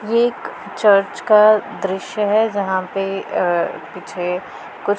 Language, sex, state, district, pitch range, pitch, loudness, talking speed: Hindi, female, Punjab, Pathankot, 190-215 Hz, 200 Hz, -18 LUFS, 130 wpm